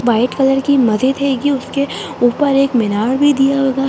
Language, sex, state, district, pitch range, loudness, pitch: Hindi, female, Bihar, Darbhanga, 245-275 Hz, -14 LUFS, 270 Hz